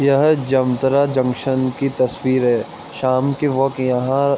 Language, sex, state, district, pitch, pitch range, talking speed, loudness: Hindi, male, Jharkhand, Jamtara, 130 Hz, 130-140 Hz, 135 wpm, -18 LUFS